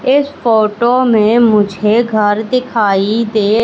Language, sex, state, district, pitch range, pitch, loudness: Hindi, female, Madhya Pradesh, Katni, 210-240 Hz, 220 Hz, -12 LUFS